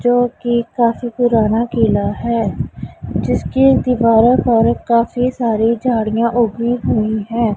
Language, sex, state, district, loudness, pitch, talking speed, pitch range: Hindi, female, Punjab, Pathankot, -15 LUFS, 235 Hz, 120 wpm, 225-245 Hz